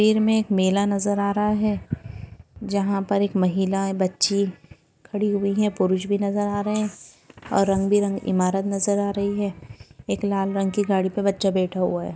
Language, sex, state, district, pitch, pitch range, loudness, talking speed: Hindi, female, Maharashtra, Solapur, 200 Hz, 190-205 Hz, -23 LUFS, 195 wpm